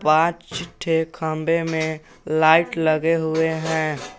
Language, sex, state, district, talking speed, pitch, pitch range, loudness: Hindi, male, Jharkhand, Garhwa, 115 wpm, 160 Hz, 155-165 Hz, -21 LUFS